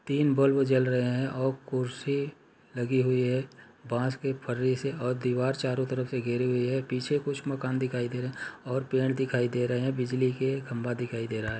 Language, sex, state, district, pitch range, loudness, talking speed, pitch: Hindi, male, Uttar Pradesh, Muzaffarnagar, 125-135 Hz, -29 LUFS, 205 wpm, 130 Hz